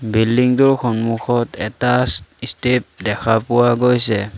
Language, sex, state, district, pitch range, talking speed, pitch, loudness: Assamese, male, Assam, Sonitpur, 110-125 Hz, 125 wpm, 120 Hz, -17 LUFS